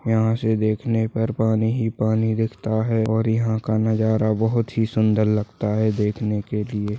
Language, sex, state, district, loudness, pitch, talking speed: Hindi, male, Maharashtra, Nagpur, -21 LUFS, 110 Hz, 180 wpm